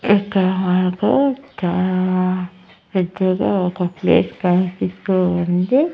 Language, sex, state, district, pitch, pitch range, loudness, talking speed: Telugu, female, Andhra Pradesh, Annamaya, 185 Hz, 180-195 Hz, -18 LUFS, 80 wpm